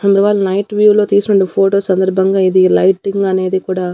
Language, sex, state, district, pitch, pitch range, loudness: Telugu, female, Andhra Pradesh, Annamaya, 195 Hz, 190-200 Hz, -12 LUFS